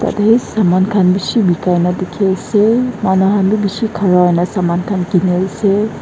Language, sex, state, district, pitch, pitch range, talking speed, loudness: Nagamese, female, Nagaland, Dimapur, 190 Hz, 180-210 Hz, 170 wpm, -14 LUFS